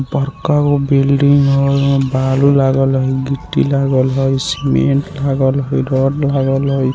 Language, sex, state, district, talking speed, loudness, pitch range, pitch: Maithili, male, Bihar, Muzaffarpur, 155 wpm, -14 LUFS, 135-140 Hz, 135 Hz